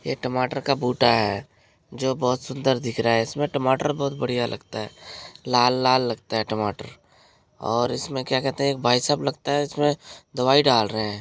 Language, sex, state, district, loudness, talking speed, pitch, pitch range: Hindi, male, Bihar, Araria, -23 LUFS, 180 wpm, 125 Hz, 115-140 Hz